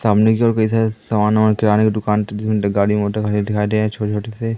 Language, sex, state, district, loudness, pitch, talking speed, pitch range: Hindi, male, Madhya Pradesh, Katni, -17 LUFS, 105 Hz, 260 wpm, 105-110 Hz